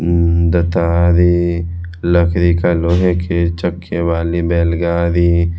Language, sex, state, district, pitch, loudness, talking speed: Hindi, male, Chhattisgarh, Raipur, 85 Hz, -15 LUFS, 95 wpm